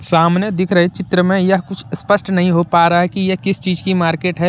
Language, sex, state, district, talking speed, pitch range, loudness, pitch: Hindi, male, Jharkhand, Deoghar, 265 wpm, 175-190 Hz, -15 LUFS, 180 Hz